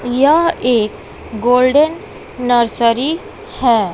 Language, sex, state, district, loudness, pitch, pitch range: Hindi, female, Bihar, West Champaran, -14 LUFS, 245 Hz, 235-295 Hz